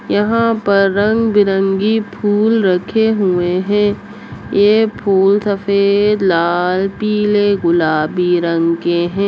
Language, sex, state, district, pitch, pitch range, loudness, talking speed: Hindi, female, Bihar, Bhagalpur, 200 Hz, 180-210 Hz, -14 LUFS, 105 wpm